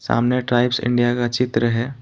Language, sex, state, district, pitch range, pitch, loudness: Hindi, male, Jharkhand, Ranchi, 120-125 Hz, 120 Hz, -19 LUFS